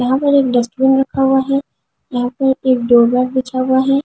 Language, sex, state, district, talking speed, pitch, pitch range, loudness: Hindi, female, Delhi, New Delhi, 195 wpm, 260 Hz, 250-270 Hz, -15 LUFS